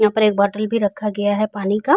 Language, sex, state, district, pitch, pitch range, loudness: Hindi, female, Uttar Pradesh, Jalaun, 210 Hz, 205-215 Hz, -19 LUFS